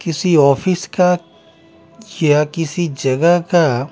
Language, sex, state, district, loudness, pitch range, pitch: Hindi, male, Bihar, Patna, -15 LUFS, 150-175 Hz, 165 Hz